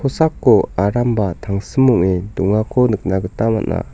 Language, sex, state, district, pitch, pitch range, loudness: Garo, male, Meghalaya, South Garo Hills, 105 Hz, 95-120 Hz, -17 LUFS